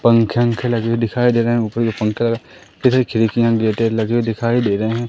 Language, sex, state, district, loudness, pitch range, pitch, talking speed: Hindi, female, Madhya Pradesh, Umaria, -17 LUFS, 115-120 Hz, 115 Hz, 225 wpm